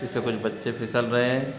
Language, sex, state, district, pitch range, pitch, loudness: Hindi, male, Chhattisgarh, Raigarh, 120-125 Hz, 120 Hz, -26 LUFS